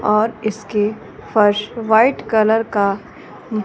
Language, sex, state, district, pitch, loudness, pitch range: Hindi, female, Punjab, Fazilka, 215 Hz, -17 LUFS, 210-225 Hz